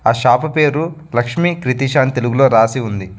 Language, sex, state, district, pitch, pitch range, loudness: Telugu, male, Telangana, Mahabubabad, 130 Hz, 120-155 Hz, -15 LUFS